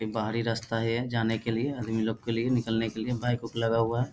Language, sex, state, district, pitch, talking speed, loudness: Hindi, male, Bihar, Bhagalpur, 115 Hz, 290 wpm, -29 LUFS